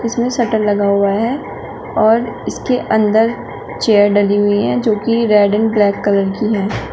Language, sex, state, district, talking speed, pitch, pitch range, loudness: Hindi, female, Uttar Pradesh, Shamli, 165 wpm, 215 Hz, 205-230 Hz, -14 LUFS